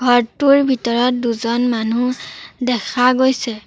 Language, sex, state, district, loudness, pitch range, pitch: Assamese, female, Assam, Sonitpur, -16 LUFS, 235-255 Hz, 245 Hz